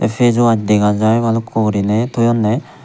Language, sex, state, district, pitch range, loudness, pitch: Chakma, male, Tripura, Unakoti, 105-120 Hz, -15 LUFS, 115 Hz